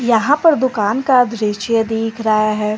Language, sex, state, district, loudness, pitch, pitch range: Hindi, female, Jharkhand, Garhwa, -15 LUFS, 225 Hz, 215-255 Hz